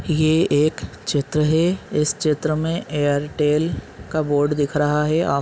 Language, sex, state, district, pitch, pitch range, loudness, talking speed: Hindi, male, Chhattisgarh, Balrampur, 150 Hz, 145-155 Hz, -20 LUFS, 145 wpm